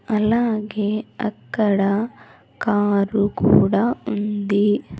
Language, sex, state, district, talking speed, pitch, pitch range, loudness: Telugu, female, Andhra Pradesh, Sri Satya Sai, 60 wpm, 205 Hz, 200-215 Hz, -20 LUFS